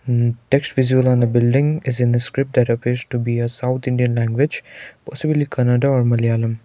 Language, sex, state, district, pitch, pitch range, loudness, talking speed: English, male, Sikkim, Gangtok, 125 Hz, 120-135 Hz, -18 LUFS, 200 wpm